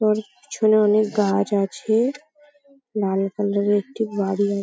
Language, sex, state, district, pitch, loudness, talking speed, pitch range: Bengali, female, West Bengal, Paschim Medinipur, 210 Hz, -21 LUFS, 155 wpm, 200-220 Hz